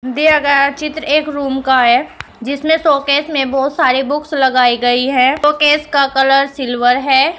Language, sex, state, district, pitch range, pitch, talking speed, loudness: Hindi, female, Uttar Pradesh, Shamli, 265-295 Hz, 280 Hz, 170 wpm, -13 LUFS